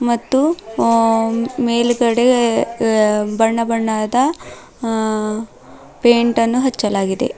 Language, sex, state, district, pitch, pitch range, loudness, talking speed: Kannada, female, Karnataka, Bidar, 230 Hz, 220-240 Hz, -16 LUFS, 80 wpm